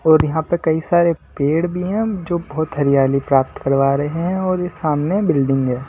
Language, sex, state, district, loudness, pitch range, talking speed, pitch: Hindi, male, Delhi, New Delhi, -18 LUFS, 140-175 Hz, 205 wpm, 160 Hz